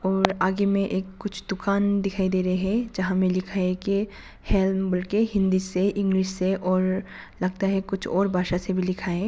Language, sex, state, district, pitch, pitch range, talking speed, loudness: Hindi, female, Arunachal Pradesh, Papum Pare, 190 Hz, 185-195 Hz, 195 wpm, -25 LUFS